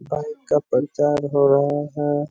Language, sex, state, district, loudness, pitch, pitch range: Hindi, male, Bihar, Bhagalpur, -20 LUFS, 145 Hz, 145-150 Hz